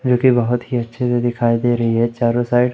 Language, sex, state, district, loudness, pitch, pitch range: Hindi, male, Madhya Pradesh, Umaria, -17 LUFS, 120 Hz, 120-125 Hz